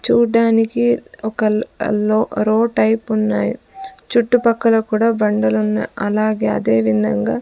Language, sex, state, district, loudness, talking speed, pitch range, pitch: Telugu, female, Andhra Pradesh, Sri Satya Sai, -17 LUFS, 115 wpm, 155-230 Hz, 215 Hz